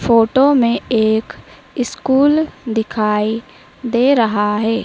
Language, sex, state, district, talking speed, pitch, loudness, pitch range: Hindi, female, Madhya Pradesh, Dhar, 100 wpm, 230 Hz, -16 LUFS, 220-260 Hz